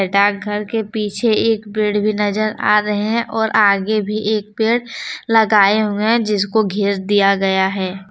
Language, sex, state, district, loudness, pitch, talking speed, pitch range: Hindi, female, Jharkhand, Deoghar, -16 LUFS, 210 Hz, 170 wpm, 200-220 Hz